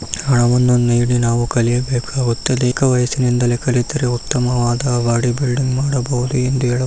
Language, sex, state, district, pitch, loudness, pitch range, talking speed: Kannada, male, Karnataka, Raichur, 125 Hz, -16 LUFS, 120-130 Hz, 120 wpm